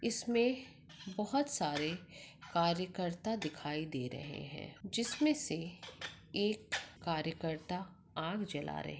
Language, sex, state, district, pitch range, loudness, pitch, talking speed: Hindi, female, Bihar, Madhepura, 150-210 Hz, -38 LUFS, 170 Hz, 105 wpm